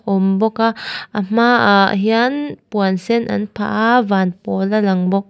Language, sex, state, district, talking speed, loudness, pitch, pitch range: Mizo, female, Mizoram, Aizawl, 190 wpm, -16 LUFS, 210 Hz, 195-230 Hz